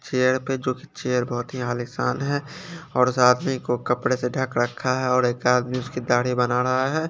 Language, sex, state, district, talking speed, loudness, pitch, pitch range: Hindi, male, Chandigarh, Chandigarh, 230 wpm, -23 LUFS, 125 Hz, 125-130 Hz